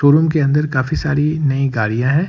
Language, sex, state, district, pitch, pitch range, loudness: Hindi, male, Jharkhand, Ranchi, 145 Hz, 135-150 Hz, -16 LUFS